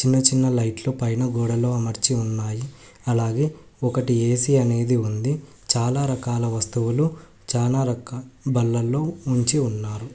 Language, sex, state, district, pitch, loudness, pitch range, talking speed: Telugu, male, Telangana, Hyderabad, 125 Hz, -22 LUFS, 115-130 Hz, 120 wpm